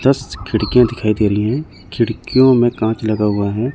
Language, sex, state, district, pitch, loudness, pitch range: Hindi, male, Chandigarh, Chandigarh, 110 Hz, -16 LUFS, 105-125 Hz